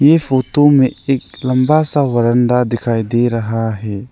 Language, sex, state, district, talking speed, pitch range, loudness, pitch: Hindi, male, Arunachal Pradesh, Lower Dibang Valley, 160 wpm, 115-140 Hz, -14 LUFS, 125 Hz